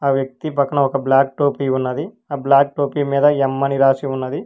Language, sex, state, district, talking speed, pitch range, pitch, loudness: Telugu, male, Telangana, Hyderabad, 200 wpm, 135-145 Hz, 140 Hz, -18 LUFS